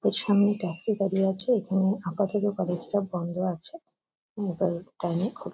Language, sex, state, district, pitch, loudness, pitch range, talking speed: Bengali, female, West Bengal, Kolkata, 195 Hz, -26 LUFS, 180-205 Hz, 175 wpm